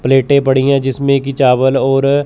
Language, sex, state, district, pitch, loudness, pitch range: Hindi, male, Chandigarh, Chandigarh, 135 Hz, -12 LUFS, 135-140 Hz